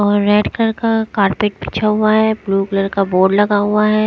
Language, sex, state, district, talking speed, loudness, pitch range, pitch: Hindi, female, Haryana, Charkhi Dadri, 220 wpm, -15 LUFS, 195-215 Hz, 210 Hz